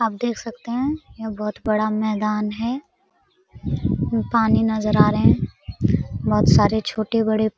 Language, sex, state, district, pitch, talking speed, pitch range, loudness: Hindi, female, Bihar, Araria, 220 Hz, 140 wpm, 215-240 Hz, -21 LUFS